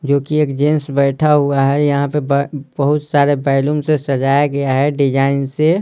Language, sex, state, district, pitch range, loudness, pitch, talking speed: Hindi, male, Bihar, Patna, 140-150 Hz, -15 LUFS, 140 Hz, 175 wpm